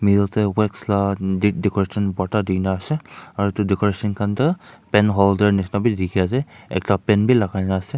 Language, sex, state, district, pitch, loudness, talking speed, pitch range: Nagamese, male, Nagaland, Kohima, 100 Hz, -20 LUFS, 195 wpm, 100-105 Hz